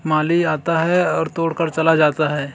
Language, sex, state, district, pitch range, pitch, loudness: Hindi, male, Chhattisgarh, Kabirdham, 155-165 Hz, 160 Hz, -18 LUFS